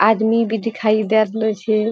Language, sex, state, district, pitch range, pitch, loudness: Angika, female, Bihar, Purnia, 215-225 Hz, 220 Hz, -18 LUFS